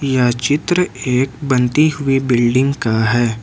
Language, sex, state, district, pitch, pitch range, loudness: Hindi, male, Jharkhand, Ranchi, 130 Hz, 120-140 Hz, -16 LUFS